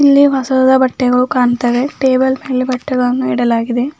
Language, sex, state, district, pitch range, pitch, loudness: Kannada, female, Karnataka, Bidar, 250-265 Hz, 255 Hz, -13 LUFS